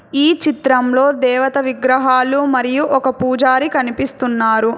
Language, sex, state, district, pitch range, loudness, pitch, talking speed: Telugu, female, Telangana, Hyderabad, 255-275 Hz, -15 LUFS, 260 Hz, 100 wpm